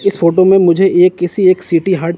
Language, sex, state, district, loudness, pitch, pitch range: Hindi, male, Chandigarh, Chandigarh, -11 LUFS, 185 Hz, 175-190 Hz